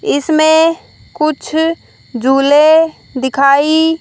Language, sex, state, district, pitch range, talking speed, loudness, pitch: Hindi, female, Haryana, Rohtak, 275-320 Hz, 60 wpm, -12 LUFS, 310 Hz